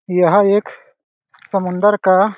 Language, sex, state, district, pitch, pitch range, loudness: Hindi, male, Chhattisgarh, Balrampur, 195 Hz, 185-205 Hz, -15 LUFS